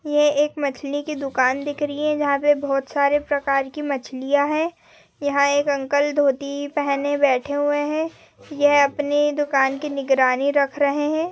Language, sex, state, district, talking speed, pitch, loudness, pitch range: Hindi, female, Bihar, Gopalganj, 170 wpm, 285 Hz, -21 LUFS, 280-295 Hz